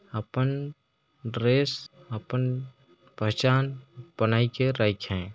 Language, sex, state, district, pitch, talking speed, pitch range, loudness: Hindi, male, Chhattisgarh, Jashpur, 125 Hz, 80 wpm, 110-135 Hz, -27 LUFS